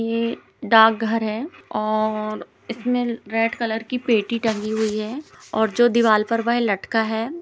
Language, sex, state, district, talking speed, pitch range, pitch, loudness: Hindi, female, Chhattisgarh, Bilaspur, 170 wpm, 220-235 Hz, 225 Hz, -21 LUFS